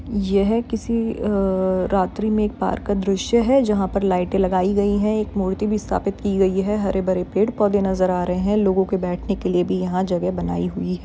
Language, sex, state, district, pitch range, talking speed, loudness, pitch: Hindi, female, Chhattisgarh, Bilaspur, 185-210 Hz, 215 wpm, -20 LUFS, 195 Hz